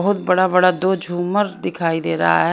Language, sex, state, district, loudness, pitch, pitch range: Hindi, female, Haryana, Rohtak, -18 LUFS, 180 Hz, 165-190 Hz